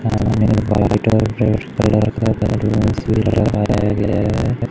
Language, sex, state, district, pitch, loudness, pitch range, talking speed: Hindi, male, Madhya Pradesh, Umaria, 110 Hz, -17 LUFS, 105-110 Hz, 140 wpm